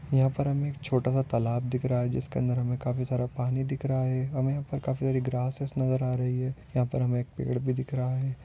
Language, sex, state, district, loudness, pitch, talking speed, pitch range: Hindi, male, Maharashtra, Dhule, -29 LUFS, 130 Hz, 255 wpm, 125-135 Hz